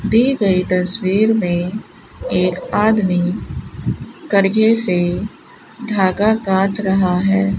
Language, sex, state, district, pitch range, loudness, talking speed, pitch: Hindi, female, Rajasthan, Bikaner, 185-215 Hz, -17 LUFS, 95 wpm, 195 Hz